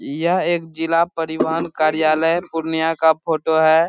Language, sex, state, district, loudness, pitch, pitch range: Hindi, male, Bihar, Purnia, -18 LUFS, 165 Hz, 160-165 Hz